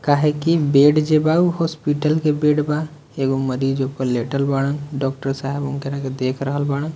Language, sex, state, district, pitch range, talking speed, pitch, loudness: Bhojpuri, male, Bihar, Muzaffarpur, 135-150 Hz, 190 wpm, 140 Hz, -19 LUFS